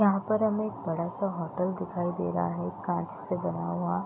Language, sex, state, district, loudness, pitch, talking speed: Hindi, female, Bihar, East Champaran, -30 LUFS, 170 Hz, 205 wpm